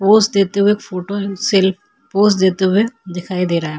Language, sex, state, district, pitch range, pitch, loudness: Hindi, female, Chhattisgarh, Korba, 185-205 Hz, 195 Hz, -16 LUFS